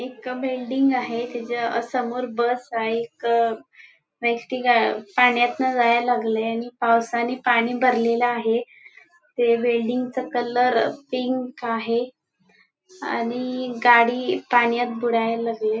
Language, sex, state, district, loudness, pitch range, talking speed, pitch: Marathi, female, Goa, North and South Goa, -22 LUFS, 235-250 Hz, 125 wpm, 240 Hz